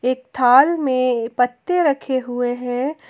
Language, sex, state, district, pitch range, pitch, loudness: Hindi, female, Jharkhand, Palamu, 245-275 Hz, 255 Hz, -18 LUFS